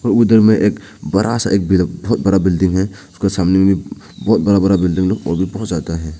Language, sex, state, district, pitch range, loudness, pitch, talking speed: Hindi, male, Arunachal Pradesh, Papum Pare, 90-100 Hz, -15 LUFS, 95 Hz, 230 wpm